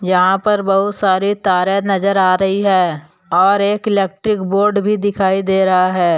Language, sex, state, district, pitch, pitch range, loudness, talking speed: Hindi, male, Jharkhand, Deoghar, 195 Hz, 185-200 Hz, -15 LUFS, 175 wpm